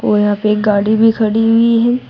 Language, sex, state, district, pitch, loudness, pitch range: Hindi, female, Uttar Pradesh, Shamli, 220 Hz, -12 LUFS, 210-225 Hz